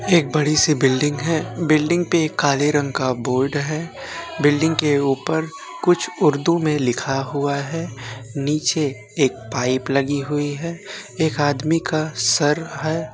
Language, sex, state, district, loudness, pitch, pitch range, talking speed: Hindi, male, Bihar, Bhagalpur, -20 LUFS, 150 Hz, 140-160 Hz, 145 wpm